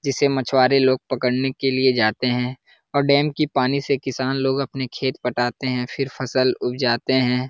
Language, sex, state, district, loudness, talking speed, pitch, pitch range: Hindi, male, Uttar Pradesh, Jalaun, -21 LUFS, 190 wpm, 130 Hz, 125-135 Hz